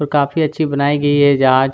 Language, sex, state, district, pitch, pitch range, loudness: Hindi, male, Chhattisgarh, Kabirdham, 145 Hz, 140-145 Hz, -15 LUFS